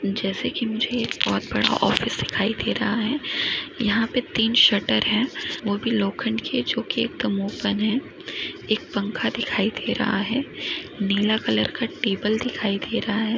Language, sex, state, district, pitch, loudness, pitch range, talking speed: Hindi, female, Rajasthan, Nagaur, 220 Hz, -23 LUFS, 205-250 Hz, 185 wpm